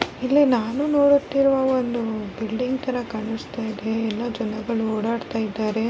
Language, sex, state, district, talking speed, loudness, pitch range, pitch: Kannada, female, Karnataka, Raichur, 110 wpm, -23 LUFS, 220-260 Hz, 235 Hz